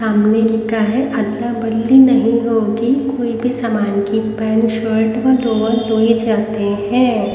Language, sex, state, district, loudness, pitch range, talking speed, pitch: Hindi, female, Haryana, Rohtak, -15 LUFS, 220-235 Hz, 145 wpm, 225 Hz